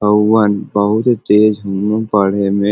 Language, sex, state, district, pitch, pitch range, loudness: Bhojpuri, male, Uttar Pradesh, Varanasi, 105 Hz, 100-110 Hz, -14 LUFS